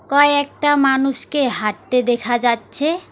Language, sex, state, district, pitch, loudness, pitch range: Bengali, female, West Bengal, Alipurduar, 270 Hz, -17 LUFS, 240-290 Hz